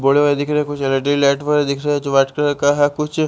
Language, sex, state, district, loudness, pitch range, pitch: Hindi, male, Bihar, West Champaran, -17 LUFS, 140-150 Hz, 145 Hz